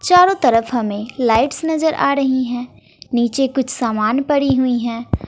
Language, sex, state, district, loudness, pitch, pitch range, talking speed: Hindi, female, Bihar, West Champaran, -17 LUFS, 255 Hz, 235-280 Hz, 160 wpm